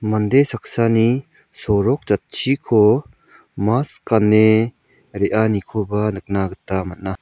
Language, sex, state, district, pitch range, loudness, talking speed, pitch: Garo, male, Meghalaya, South Garo Hills, 100-120 Hz, -18 LUFS, 85 wpm, 110 Hz